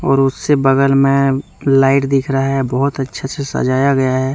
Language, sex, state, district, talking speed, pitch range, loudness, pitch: Hindi, male, Jharkhand, Deoghar, 195 wpm, 135-140 Hz, -15 LUFS, 135 Hz